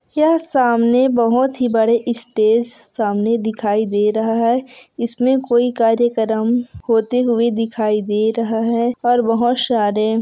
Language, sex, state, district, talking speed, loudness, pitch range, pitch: Hindi, female, Chhattisgarh, Kabirdham, 135 wpm, -17 LUFS, 220-245 Hz, 235 Hz